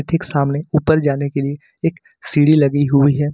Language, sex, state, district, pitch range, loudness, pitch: Hindi, male, Jharkhand, Ranchi, 140-155 Hz, -17 LUFS, 145 Hz